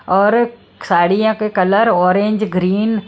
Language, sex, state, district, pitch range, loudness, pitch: Hindi, female, Maharashtra, Mumbai Suburban, 185-220 Hz, -15 LUFS, 205 Hz